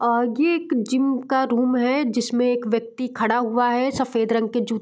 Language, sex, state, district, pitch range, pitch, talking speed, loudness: Hindi, female, Bihar, Gopalganj, 235-260 Hz, 245 Hz, 225 wpm, -21 LUFS